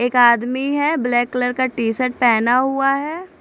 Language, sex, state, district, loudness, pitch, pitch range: Hindi, female, Chandigarh, Chandigarh, -18 LUFS, 250 Hz, 245-275 Hz